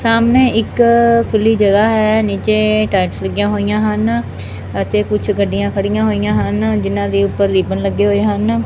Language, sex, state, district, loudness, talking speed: Punjabi, female, Punjab, Fazilka, -14 LUFS, 160 wpm